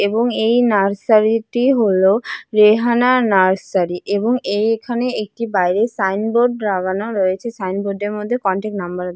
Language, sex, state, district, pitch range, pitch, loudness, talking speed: Bengali, female, West Bengal, Jalpaiguri, 195-235 Hz, 210 Hz, -17 LUFS, 130 wpm